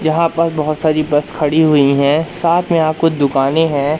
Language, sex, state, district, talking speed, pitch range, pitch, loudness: Hindi, male, Madhya Pradesh, Katni, 210 wpm, 145-165 Hz, 155 Hz, -14 LUFS